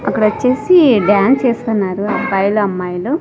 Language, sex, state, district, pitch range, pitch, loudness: Telugu, female, Andhra Pradesh, Sri Satya Sai, 200-255 Hz, 215 Hz, -14 LUFS